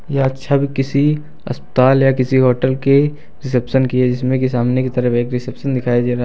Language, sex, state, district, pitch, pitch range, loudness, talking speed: Hindi, male, Uttar Pradesh, Lucknow, 130 Hz, 125-135 Hz, -16 LUFS, 210 wpm